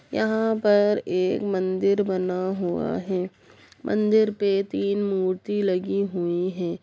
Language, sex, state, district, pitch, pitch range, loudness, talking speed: Hindi, female, Bihar, Saran, 195 Hz, 185-205 Hz, -24 LUFS, 125 wpm